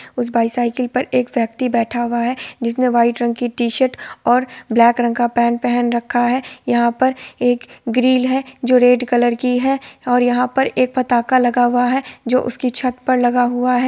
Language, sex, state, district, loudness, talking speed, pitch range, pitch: Hindi, female, Bihar, Sitamarhi, -17 LUFS, 205 wpm, 240-255 Hz, 245 Hz